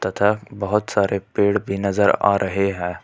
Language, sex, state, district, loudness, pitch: Hindi, male, Jharkhand, Ranchi, -20 LUFS, 100 Hz